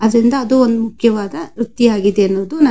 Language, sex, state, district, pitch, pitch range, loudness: Kannada, female, Karnataka, Mysore, 230 Hz, 210-245 Hz, -15 LUFS